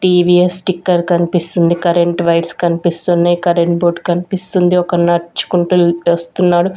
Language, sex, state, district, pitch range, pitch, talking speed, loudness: Telugu, female, Andhra Pradesh, Sri Satya Sai, 170-180 Hz, 175 Hz, 105 wpm, -13 LUFS